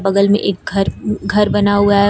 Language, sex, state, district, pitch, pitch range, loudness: Hindi, female, Uttar Pradesh, Lucknow, 200 Hz, 195-205 Hz, -15 LUFS